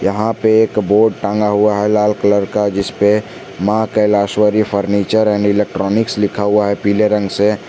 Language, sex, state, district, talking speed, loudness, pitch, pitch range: Hindi, male, Jharkhand, Garhwa, 180 wpm, -14 LUFS, 105 Hz, 100-105 Hz